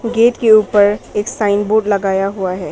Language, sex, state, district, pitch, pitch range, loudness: Hindi, female, Arunachal Pradesh, Papum Pare, 205 Hz, 200-220 Hz, -14 LUFS